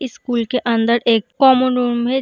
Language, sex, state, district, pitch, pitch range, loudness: Hindi, female, Uttar Pradesh, Jyotiba Phule Nagar, 245 Hz, 235-260 Hz, -16 LUFS